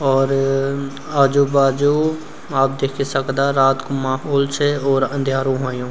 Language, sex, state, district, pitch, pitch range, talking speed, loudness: Garhwali, male, Uttarakhand, Uttarkashi, 135 Hz, 135-140 Hz, 130 wpm, -18 LUFS